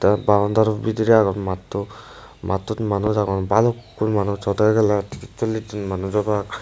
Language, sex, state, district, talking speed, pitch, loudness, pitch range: Chakma, male, Tripura, West Tripura, 135 wpm, 105 Hz, -20 LUFS, 100-110 Hz